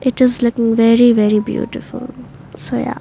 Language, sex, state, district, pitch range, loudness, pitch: English, female, Maharashtra, Mumbai Suburban, 230-245 Hz, -14 LUFS, 235 Hz